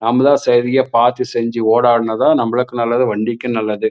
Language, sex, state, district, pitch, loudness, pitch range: Tamil, male, Karnataka, Chamarajanagar, 120 Hz, -15 LUFS, 115-125 Hz